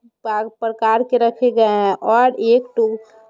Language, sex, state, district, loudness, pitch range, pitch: Hindi, female, Bihar, Muzaffarpur, -17 LUFS, 220-235 Hz, 225 Hz